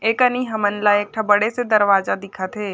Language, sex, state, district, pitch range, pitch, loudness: Chhattisgarhi, female, Chhattisgarh, Jashpur, 205-225 Hz, 210 Hz, -18 LUFS